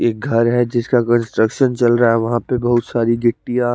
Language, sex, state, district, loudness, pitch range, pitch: Hindi, male, Chandigarh, Chandigarh, -16 LUFS, 115-120 Hz, 120 Hz